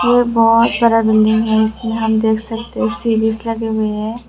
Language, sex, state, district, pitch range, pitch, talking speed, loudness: Hindi, female, Tripura, West Tripura, 220-230 Hz, 225 Hz, 170 wpm, -15 LUFS